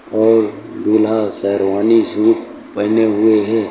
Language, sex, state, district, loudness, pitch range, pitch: Hindi, male, Uttar Pradesh, Lucknow, -15 LUFS, 105-115 Hz, 110 Hz